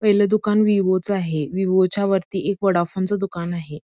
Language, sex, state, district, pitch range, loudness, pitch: Marathi, female, Karnataka, Belgaum, 175-200 Hz, -20 LUFS, 190 Hz